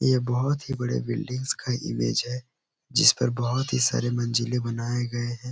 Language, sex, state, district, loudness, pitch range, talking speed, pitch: Hindi, male, Uttar Pradesh, Etah, -25 LUFS, 120-130 Hz, 165 wpm, 125 Hz